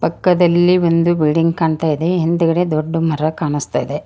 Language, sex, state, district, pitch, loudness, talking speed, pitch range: Kannada, female, Karnataka, Koppal, 165 Hz, -16 LUFS, 150 wpm, 155-175 Hz